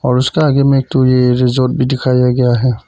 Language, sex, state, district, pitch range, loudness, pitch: Hindi, male, Arunachal Pradesh, Papum Pare, 125-135 Hz, -12 LUFS, 130 Hz